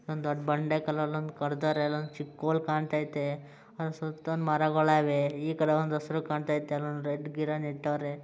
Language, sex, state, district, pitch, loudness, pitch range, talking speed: Kannada, male, Karnataka, Mysore, 150 Hz, -31 LUFS, 145-155 Hz, 145 wpm